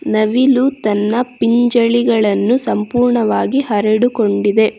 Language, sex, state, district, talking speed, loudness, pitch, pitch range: Kannada, female, Karnataka, Bangalore, 65 wpm, -14 LUFS, 230 Hz, 215-245 Hz